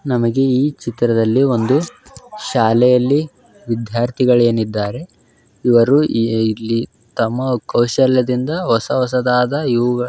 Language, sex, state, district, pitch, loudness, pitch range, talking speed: Kannada, male, Karnataka, Belgaum, 125 Hz, -16 LUFS, 115-130 Hz, 85 wpm